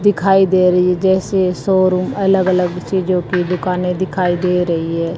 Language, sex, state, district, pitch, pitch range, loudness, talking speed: Hindi, female, Haryana, Jhajjar, 180 Hz, 180-190 Hz, -15 LUFS, 175 wpm